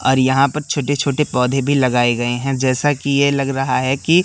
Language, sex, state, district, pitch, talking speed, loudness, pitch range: Hindi, male, Madhya Pradesh, Katni, 135 Hz, 240 wpm, -17 LUFS, 130-140 Hz